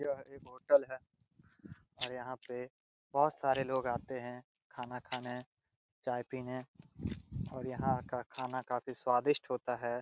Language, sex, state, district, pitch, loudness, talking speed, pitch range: Hindi, male, Jharkhand, Jamtara, 125 Hz, -37 LUFS, 145 wpm, 125-135 Hz